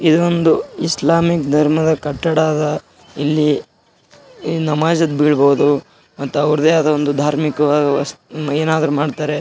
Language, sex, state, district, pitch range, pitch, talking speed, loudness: Kannada, male, Karnataka, Gulbarga, 145-160 Hz, 150 Hz, 95 wpm, -16 LUFS